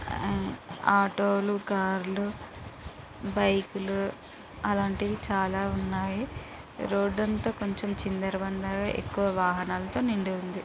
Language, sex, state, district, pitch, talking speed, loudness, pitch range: Telugu, female, Andhra Pradesh, Guntur, 195 Hz, 75 wpm, -29 LUFS, 190-200 Hz